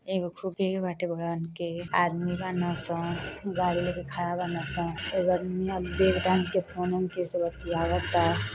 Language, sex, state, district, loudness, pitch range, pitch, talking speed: Bhojpuri, female, Uttar Pradesh, Deoria, -29 LUFS, 170-185 Hz, 175 Hz, 120 wpm